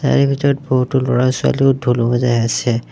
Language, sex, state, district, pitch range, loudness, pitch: Assamese, male, Assam, Sonitpur, 120-135 Hz, -16 LUFS, 130 Hz